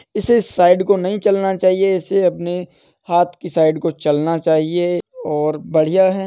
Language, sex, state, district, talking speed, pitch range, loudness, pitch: Hindi, male, Uttar Pradesh, Etah, 170 wpm, 165-190 Hz, -17 LUFS, 175 Hz